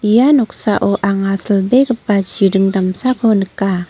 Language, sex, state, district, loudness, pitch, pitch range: Garo, female, Meghalaya, North Garo Hills, -14 LUFS, 200 Hz, 195-235 Hz